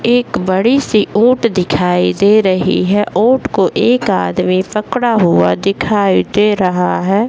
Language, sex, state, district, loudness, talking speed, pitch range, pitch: Hindi, female, Bihar, Bhagalpur, -13 LUFS, 140 wpm, 185-230 Hz, 205 Hz